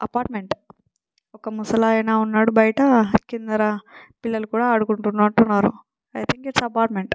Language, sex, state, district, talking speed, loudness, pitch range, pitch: Telugu, female, Telangana, Nalgonda, 115 wpm, -20 LUFS, 215-230 Hz, 220 Hz